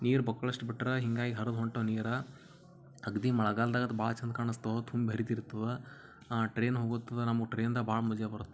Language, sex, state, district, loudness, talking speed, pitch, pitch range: Kannada, male, Karnataka, Bijapur, -34 LUFS, 150 wpm, 115 Hz, 115-125 Hz